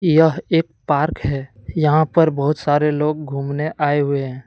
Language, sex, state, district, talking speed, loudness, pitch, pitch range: Hindi, male, Jharkhand, Deoghar, 175 wpm, -19 LUFS, 150 Hz, 140-155 Hz